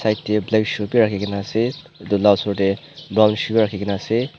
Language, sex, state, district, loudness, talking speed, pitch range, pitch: Nagamese, male, Nagaland, Dimapur, -19 LUFS, 205 wpm, 100-115 Hz, 105 Hz